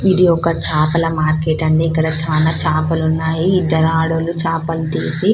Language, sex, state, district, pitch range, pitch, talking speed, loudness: Telugu, female, Telangana, Karimnagar, 160-165 Hz, 160 Hz, 155 wpm, -16 LUFS